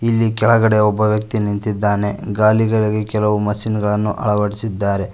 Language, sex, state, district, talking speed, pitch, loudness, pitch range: Kannada, male, Karnataka, Koppal, 115 wpm, 105 Hz, -17 LUFS, 105-110 Hz